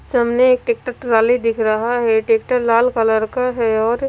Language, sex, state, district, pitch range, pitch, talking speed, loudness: Hindi, female, Punjab, Fazilka, 225-250 Hz, 235 Hz, 190 wpm, -16 LUFS